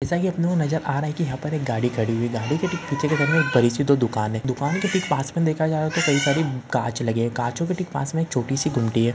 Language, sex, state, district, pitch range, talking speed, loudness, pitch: Hindi, male, Uttarakhand, Uttarkashi, 120-160 Hz, 335 wpm, -23 LUFS, 145 Hz